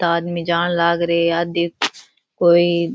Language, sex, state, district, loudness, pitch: Rajasthani, female, Rajasthan, Churu, -18 LUFS, 170 Hz